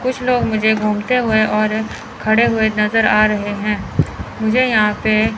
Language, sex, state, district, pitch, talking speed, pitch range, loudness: Hindi, male, Chandigarh, Chandigarh, 220 Hz, 165 wpm, 215-225 Hz, -16 LUFS